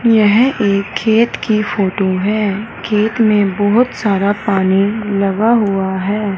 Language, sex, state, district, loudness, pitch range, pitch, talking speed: Hindi, female, Punjab, Fazilka, -14 LUFS, 195-220 Hz, 205 Hz, 130 wpm